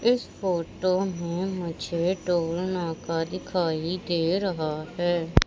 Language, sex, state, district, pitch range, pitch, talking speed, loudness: Hindi, female, Madhya Pradesh, Katni, 165-185 Hz, 175 Hz, 110 wpm, -27 LUFS